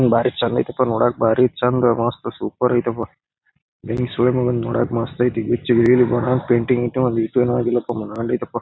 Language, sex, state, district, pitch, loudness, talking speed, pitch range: Kannada, male, Karnataka, Bijapur, 120 Hz, -19 LUFS, 180 wpm, 115-125 Hz